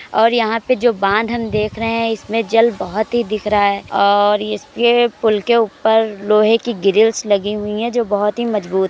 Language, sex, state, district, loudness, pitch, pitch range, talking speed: Hindi, male, Uttar Pradesh, Jyotiba Phule Nagar, -16 LUFS, 220 Hz, 210-230 Hz, 215 wpm